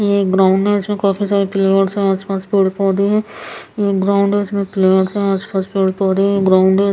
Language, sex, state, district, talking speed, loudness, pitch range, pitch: Hindi, female, Bihar, Patna, 210 wpm, -15 LUFS, 190-200 Hz, 195 Hz